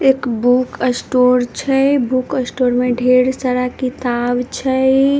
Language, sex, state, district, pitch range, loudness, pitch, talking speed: Maithili, female, Bihar, Madhepura, 245-265 Hz, -16 LUFS, 255 Hz, 125 wpm